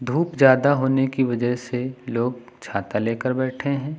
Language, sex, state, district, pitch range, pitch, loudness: Hindi, male, Uttar Pradesh, Lucknow, 120-135 Hz, 130 Hz, -22 LUFS